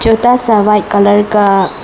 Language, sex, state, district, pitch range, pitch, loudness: Hindi, female, Arunachal Pradesh, Lower Dibang Valley, 205-225 Hz, 210 Hz, -10 LUFS